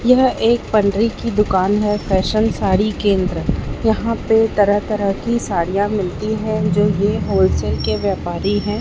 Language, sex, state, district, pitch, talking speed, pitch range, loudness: Hindi, male, Chhattisgarh, Raipur, 205 Hz, 155 wpm, 195-220 Hz, -17 LUFS